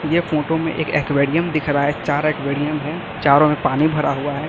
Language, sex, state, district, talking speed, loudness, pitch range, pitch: Hindi, male, Chhattisgarh, Raipur, 225 wpm, -19 LUFS, 145-155 Hz, 150 Hz